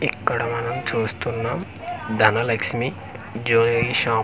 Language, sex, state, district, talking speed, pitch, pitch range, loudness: Telugu, male, Andhra Pradesh, Manyam, 100 wpm, 115 Hz, 110-115 Hz, -22 LUFS